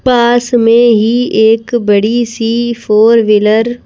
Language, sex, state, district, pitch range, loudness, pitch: Hindi, female, Madhya Pradesh, Bhopal, 220-240 Hz, -10 LUFS, 230 Hz